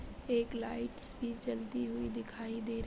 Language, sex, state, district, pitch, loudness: Hindi, female, Maharashtra, Solapur, 225 Hz, -38 LUFS